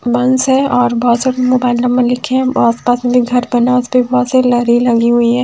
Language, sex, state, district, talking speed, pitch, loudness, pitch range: Hindi, female, Haryana, Charkhi Dadri, 230 wpm, 245 Hz, -12 LUFS, 240-255 Hz